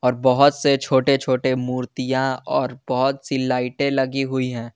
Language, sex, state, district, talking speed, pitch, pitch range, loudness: Hindi, male, Jharkhand, Garhwa, 165 wpm, 130 Hz, 125-135 Hz, -20 LUFS